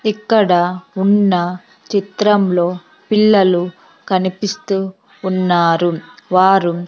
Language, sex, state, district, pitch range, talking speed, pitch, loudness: Telugu, female, Andhra Pradesh, Sri Satya Sai, 180-205 Hz, 70 wpm, 190 Hz, -15 LUFS